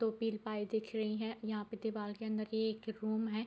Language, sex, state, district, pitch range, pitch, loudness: Hindi, female, Bihar, East Champaran, 215-220 Hz, 220 Hz, -39 LUFS